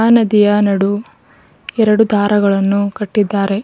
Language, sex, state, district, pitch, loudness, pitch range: Kannada, female, Karnataka, Bidar, 205 Hz, -14 LUFS, 200-215 Hz